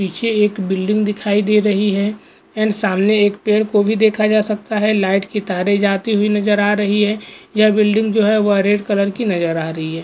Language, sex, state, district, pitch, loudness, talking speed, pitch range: Hindi, male, Goa, North and South Goa, 210 Hz, -16 LUFS, 225 wpm, 200-215 Hz